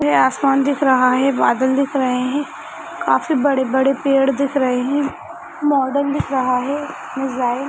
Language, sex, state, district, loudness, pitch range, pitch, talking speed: Hindi, female, Rajasthan, Churu, -18 LUFS, 260-280 Hz, 275 Hz, 170 wpm